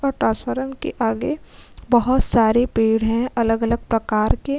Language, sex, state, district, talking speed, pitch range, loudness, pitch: Hindi, female, Bihar, Vaishali, 145 wpm, 225-260 Hz, -19 LUFS, 235 Hz